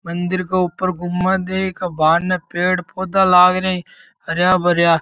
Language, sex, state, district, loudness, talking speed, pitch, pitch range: Marwari, male, Rajasthan, Churu, -17 LUFS, 155 wpm, 180 Hz, 175-185 Hz